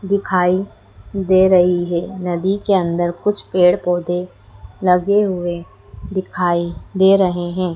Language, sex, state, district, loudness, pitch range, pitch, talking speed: Hindi, female, Madhya Pradesh, Dhar, -17 LUFS, 175-190 Hz, 180 Hz, 125 wpm